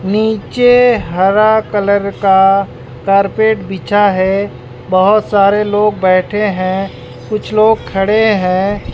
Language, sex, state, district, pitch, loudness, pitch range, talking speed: Hindi, male, Bihar, West Champaran, 200 Hz, -12 LUFS, 190-215 Hz, 105 wpm